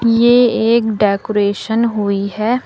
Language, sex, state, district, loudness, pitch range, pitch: Hindi, female, Uttar Pradesh, Lucknow, -14 LUFS, 205-235 Hz, 220 Hz